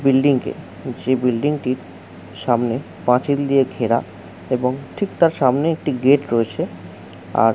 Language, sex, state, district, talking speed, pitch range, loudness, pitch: Bengali, male, West Bengal, Jhargram, 145 wpm, 105-135 Hz, -19 LUFS, 125 Hz